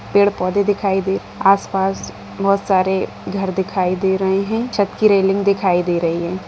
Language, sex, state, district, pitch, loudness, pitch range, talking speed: Hindi, female, Bihar, Madhepura, 195 Hz, -18 LUFS, 190-200 Hz, 165 wpm